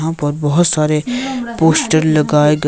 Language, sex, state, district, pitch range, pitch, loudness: Hindi, male, Himachal Pradesh, Shimla, 150-170 Hz, 155 Hz, -14 LUFS